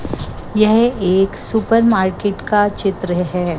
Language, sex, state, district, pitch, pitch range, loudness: Hindi, female, Gujarat, Gandhinagar, 200 Hz, 185-220 Hz, -16 LUFS